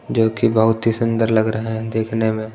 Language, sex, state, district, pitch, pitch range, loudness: Hindi, male, Punjab, Pathankot, 110 Hz, 110-115 Hz, -18 LUFS